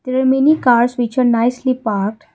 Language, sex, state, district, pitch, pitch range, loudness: English, female, Assam, Kamrup Metropolitan, 250 Hz, 235-260 Hz, -15 LUFS